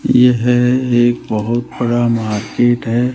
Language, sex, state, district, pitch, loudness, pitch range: Hindi, male, Rajasthan, Jaipur, 120 Hz, -15 LUFS, 115-125 Hz